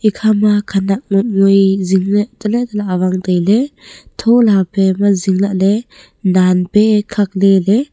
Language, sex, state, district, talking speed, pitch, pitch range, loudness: Wancho, female, Arunachal Pradesh, Longding, 150 wpm, 200 Hz, 190-210 Hz, -13 LUFS